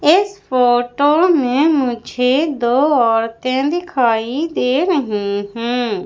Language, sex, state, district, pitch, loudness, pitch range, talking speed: Hindi, female, Madhya Pradesh, Umaria, 255 Hz, -16 LUFS, 235-300 Hz, 100 wpm